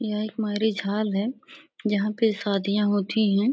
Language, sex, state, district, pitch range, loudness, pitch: Hindi, female, Bihar, Gopalganj, 205-220 Hz, -25 LUFS, 215 Hz